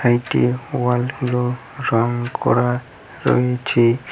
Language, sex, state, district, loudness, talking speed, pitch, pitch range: Bengali, male, West Bengal, Cooch Behar, -19 LUFS, 60 wpm, 125 Hz, 120-125 Hz